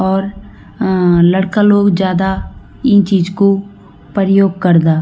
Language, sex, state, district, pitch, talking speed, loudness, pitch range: Garhwali, female, Uttarakhand, Tehri Garhwal, 190 Hz, 120 wpm, -13 LUFS, 185-200 Hz